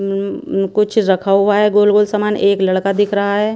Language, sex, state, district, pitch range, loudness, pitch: Hindi, female, Bihar, Kaimur, 195-210 Hz, -15 LUFS, 200 Hz